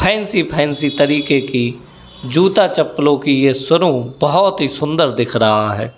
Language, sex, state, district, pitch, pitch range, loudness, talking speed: Hindi, male, Uttar Pradesh, Saharanpur, 145 Hz, 130-170 Hz, -15 LUFS, 150 wpm